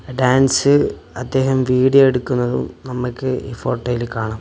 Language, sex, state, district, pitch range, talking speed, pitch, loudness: Malayalam, male, Kerala, Kasaragod, 120-130 Hz, 110 wpm, 125 Hz, -17 LUFS